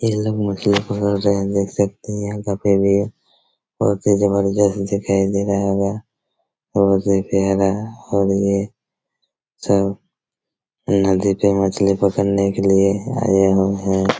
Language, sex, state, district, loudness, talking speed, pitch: Hindi, male, Chhattisgarh, Raigarh, -18 LUFS, 140 wpm, 100 Hz